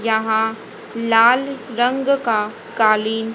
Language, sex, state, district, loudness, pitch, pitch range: Hindi, female, Haryana, Jhajjar, -18 LUFS, 225 Hz, 220-240 Hz